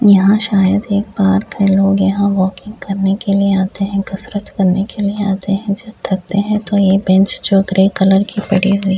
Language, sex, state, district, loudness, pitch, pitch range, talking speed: Hindi, female, Uttar Pradesh, Deoria, -14 LUFS, 195 Hz, 195-205 Hz, 215 wpm